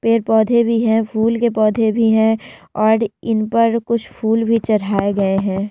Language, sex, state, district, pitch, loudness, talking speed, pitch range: Hindi, female, Bihar, Vaishali, 225 Hz, -16 LUFS, 170 wpm, 215-230 Hz